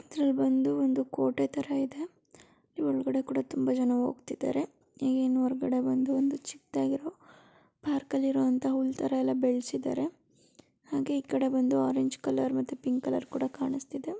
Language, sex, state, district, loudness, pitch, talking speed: Kannada, female, Karnataka, Chamarajanagar, -30 LUFS, 260 Hz, 145 wpm